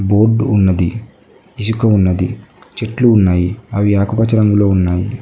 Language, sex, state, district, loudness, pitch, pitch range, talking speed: Telugu, male, Telangana, Mahabubabad, -14 LUFS, 105 Hz, 95-115 Hz, 115 wpm